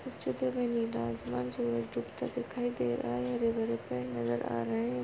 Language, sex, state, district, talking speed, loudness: Hindi, female, Chhattisgarh, Balrampur, 190 wpm, -34 LUFS